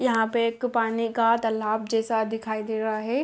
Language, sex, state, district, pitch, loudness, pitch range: Hindi, female, Bihar, Muzaffarpur, 225 Hz, -25 LUFS, 220-230 Hz